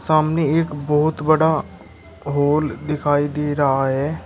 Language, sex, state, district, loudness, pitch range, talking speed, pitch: Hindi, male, Uttar Pradesh, Shamli, -19 LUFS, 145-155 Hz, 125 wpm, 150 Hz